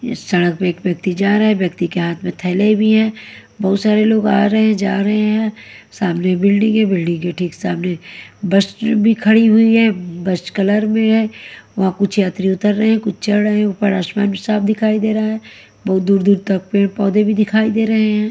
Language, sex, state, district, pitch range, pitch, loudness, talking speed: Hindi, female, Haryana, Jhajjar, 190-215 Hz, 205 Hz, -15 LUFS, 225 wpm